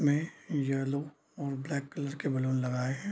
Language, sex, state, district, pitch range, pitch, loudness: Hindi, male, Bihar, Darbhanga, 135-145 Hz, 140 Hz, -33 LUFS